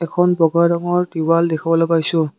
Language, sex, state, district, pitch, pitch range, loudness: Assamese, male, Assam, Kamrup Metropolitan, 165 Hz, 165-170 Hz, -17 LUFS